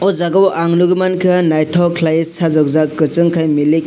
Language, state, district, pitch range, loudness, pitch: Kokborok, Tripura, West Tripura, 155-180 Hz, -13 LUFS, 170 Hz